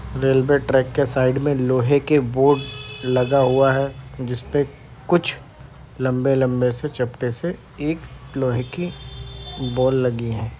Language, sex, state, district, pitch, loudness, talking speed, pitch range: Hindi, male, Uttar Pradesh, Deoria, 130 Hz, -21 LUFS, 130 wpm, 125-140 Hz